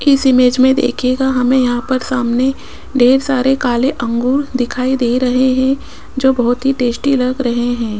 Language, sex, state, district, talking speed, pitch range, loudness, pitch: Hindi, female, Rajasthan, Jaipur, 170 wpm, 245-265 Hz, -14 LUFS, 255 Hz